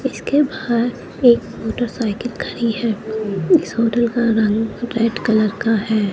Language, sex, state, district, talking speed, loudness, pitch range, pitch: Hindi, female, Bihar, West Champaran, 135 wpm, -18 LUFS, 220-240 Hz, 230 Hz